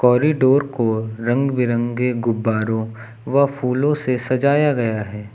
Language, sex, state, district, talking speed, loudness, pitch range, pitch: Hindi, male, Uttar Pradesh, Lucknow, 125 wpm, -19 LUFS, 110-135 Hz, 125 Hz